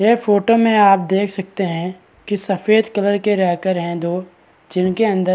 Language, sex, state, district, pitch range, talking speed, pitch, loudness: Hindi, male, Uttar Pradesh, Varanasi, 185-205 Hz, 190 wpm, 195 Hz, -17 LUFS